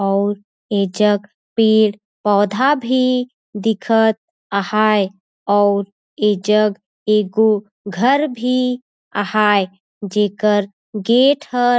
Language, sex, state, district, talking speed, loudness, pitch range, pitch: Surgujia, female, Chhattisgarh, Sarguja, 80 wpm, -17 LUFS, 205-240 Hz, 210 Hz